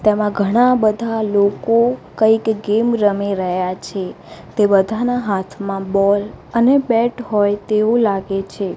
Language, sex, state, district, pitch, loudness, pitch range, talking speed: Gujarati, female, Gujarat, Gandhinagar, 210 Hz, -17 LUFS, 200-230 Hz, 130 wpm